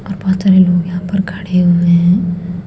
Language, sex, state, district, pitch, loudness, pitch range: Hindi, female, Madhya Pradesh, Bhopal, 180 Hz, -13 LUFS, 175-190 Hz